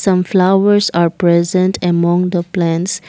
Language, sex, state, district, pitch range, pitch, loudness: English, female, Assam, Kamrup Metropolitan, 170-190 Hz, 180 Hz, -14 LUFS